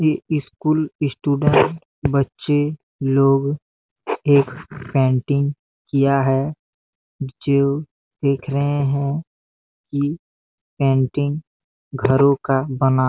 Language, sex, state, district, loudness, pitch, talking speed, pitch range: Hindi, male, Chhattisgarh, Bastar, -20 LUFS, 140 Hz, 80 wpm, 135-145 Hz